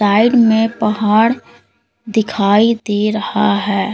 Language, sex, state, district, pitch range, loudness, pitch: Hindi, female, Uttar Pradesh, Lalitpur, 205-225 Hz, -14 LUFS, 215 Hz